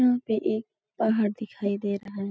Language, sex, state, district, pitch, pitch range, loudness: Hindi, female, Uttar Pradesh, Etah, 215 Hz, 200-225 Hz, -27 LUFS